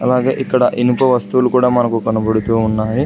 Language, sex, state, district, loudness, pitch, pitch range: Telugu, male, Telangana, Hyderabad, -15 LUFS, 125 Hz, 110-125 Hz